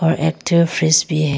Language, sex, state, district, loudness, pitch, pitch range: Hindi, female, Arunachal Pradesh, Longding, -16 LUFS, 160 Hz, 160-170 Hz